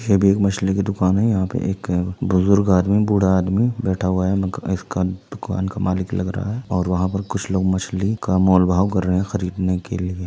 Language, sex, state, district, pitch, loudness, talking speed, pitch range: Hindi, male, Uttar Pradesh, Muzaffarnagar, 95 Hz, -20 LUFS, 230 wpm, 95-100 Hz